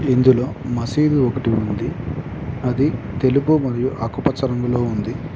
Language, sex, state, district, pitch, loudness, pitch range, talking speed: Telugu, male, Telangana, Mahabubabad, 125 Hz, -20 LUFS, 120-135 Hz, 110 wpm